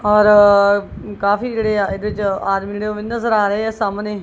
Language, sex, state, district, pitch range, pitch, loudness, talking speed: Punjabi, female, Punjab, Kapurthala, 200-210 Hz, 210 Hz, -16 LUFS, 215 wpm